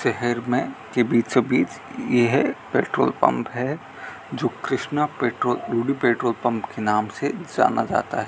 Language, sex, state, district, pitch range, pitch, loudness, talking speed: Hindi, male, Rajasthan, Bikaner, 115-125 Hz, 120 Hz, -23 LUFS, 160 wpm